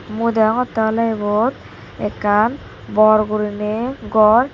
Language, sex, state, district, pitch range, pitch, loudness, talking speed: Chakma, female, Tripura, Dhalai, 215-230 Hz, 220 Hz, -17 LUFS, 105 wpm